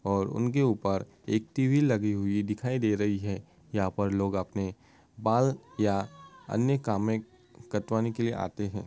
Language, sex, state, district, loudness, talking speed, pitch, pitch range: Hindi, male, Uttar Pradesh, Muzaffarnagar, -29 LUFS, 160 wpm, 110 Hz, 100-120 Hz